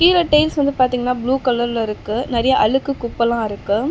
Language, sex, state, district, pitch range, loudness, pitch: Tamil, female, Tamil Nadu, Chennai, 235-275 Hz, -18 LUFS, 250 Hz